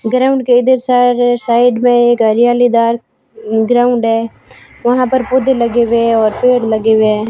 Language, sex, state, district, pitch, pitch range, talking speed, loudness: Hindi, female, Rajasthan, Barmer, 240 Hz, 225-245 Hz, 180 wpm, -12 LUFS